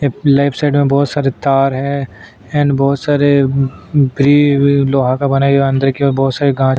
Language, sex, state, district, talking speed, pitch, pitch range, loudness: Hindi, male, Chhattisgarh, Sukma, 105 wpm, 140 Hz, 135-140 Hz, -13 LUFS